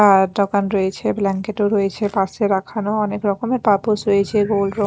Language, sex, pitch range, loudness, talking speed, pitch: Bengali, female, 195-210 Hz, -19 LUFS, 170 wpm, 205 Hz